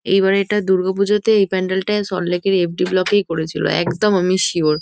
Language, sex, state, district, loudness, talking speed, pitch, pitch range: Bengali, female, West Bengal, Kolkata, -17 LUFS, 185 wpm, 190 Hz, 175-200 Hz